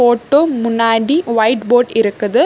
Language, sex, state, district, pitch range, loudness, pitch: Tamil, female, Karnataka, Bangalore, 225-245 Hz, -14 LUFS, 235 Hz